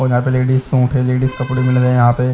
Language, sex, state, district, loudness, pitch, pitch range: Hindi, male, Haryana, Charkhi Dadri, -15 LUFS, 130 Hz, 125-130 Hz